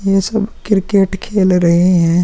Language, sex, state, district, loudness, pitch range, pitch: Hindi, female, Bihar, Vaishali, -14 LUFS, 180-200 Hz, 195 Hz